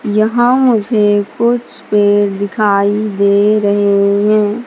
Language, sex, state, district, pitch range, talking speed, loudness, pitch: Hindi, female, Madhya Pradesh, Katni, 205-215 Hz, 105 wpm, -12 LUFS, 210 Hz